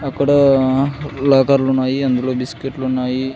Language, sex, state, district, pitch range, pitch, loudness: Telugu, male, Andhra Pradesh, Sri Satya Sai, 130-140 Hz, 135 Hz, -16 LUFS